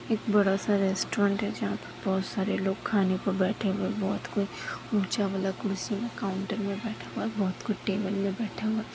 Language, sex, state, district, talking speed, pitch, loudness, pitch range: Hindi, female, Chhattisgarh, Balrampur, 220 wpm, 200 Hz, -29 LUFS, 195-210 Hz